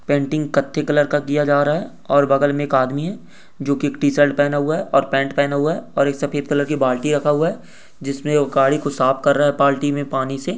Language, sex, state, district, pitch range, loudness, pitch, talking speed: Hindi, male, Uttar Pradesh, Budaun, 140-145 Hz, -18 LUFS, 145 Hz, 255 wpm